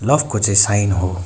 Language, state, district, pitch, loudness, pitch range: Nepali, West Bengal, Darjeeling, 100 Hz, -15 LUFS, 95-105 Hz